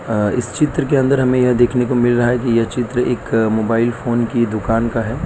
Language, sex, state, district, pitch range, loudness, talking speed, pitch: Hindi, male, Gujarat, Valsad, 115-125 Hz, -16 LUFS, 250 wpm, 120 Hz